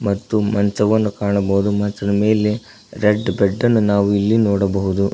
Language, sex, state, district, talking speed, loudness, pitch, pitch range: Kannada, male, Karnataka, Koppal, 130 wpm, -17 LUFS, 100 Hz, 100-105 Hz